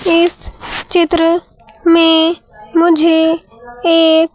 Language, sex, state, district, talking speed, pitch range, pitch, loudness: Hindi, female, Madhya Pradesh, Bhopal, 70 wpm, 320-340 Hz, 330 Hz, -12 LUFS